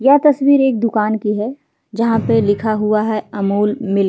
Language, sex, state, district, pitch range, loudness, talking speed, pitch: Hindi, female, Bihar, Vaishali, 210-245 Hz, -16 LUFS, 205 wpm, 220 Hz